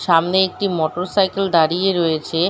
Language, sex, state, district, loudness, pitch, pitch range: Bengali, female, West Bengal, Dakshin Dinajpur, -18 LUFS, 180 Hz, 165-190 Hz